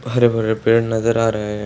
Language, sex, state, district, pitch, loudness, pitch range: Hindi, male, Bihar, Samastipur, 115 Hz, -17 LUFS, 110-115 Hz